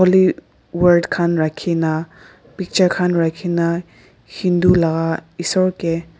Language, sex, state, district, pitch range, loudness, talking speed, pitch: Nagamese, female, Nagaland, Dimapur, 165-180 Hz, -18 LUFS, 105 wpm, 170 Hz